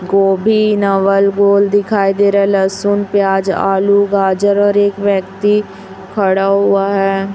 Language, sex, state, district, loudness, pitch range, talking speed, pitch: Hindi, female, Chhattisgarh, Raipur, -13 LUFS, 195-200 Hz, 140 wpm, 200 Hz